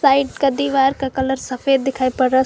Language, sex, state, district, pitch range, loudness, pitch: Hindi, female, Jharkhand, Garhwa, 260-275 Hz, -18 LUFS, 270 Hz